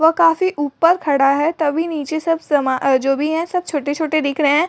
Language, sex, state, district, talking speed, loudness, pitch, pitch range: Hindi, female, Uttar Pradesh, Muzaffarnagar, 220 wpm, -17 LUFS, 310 Hz, 285-330 Hz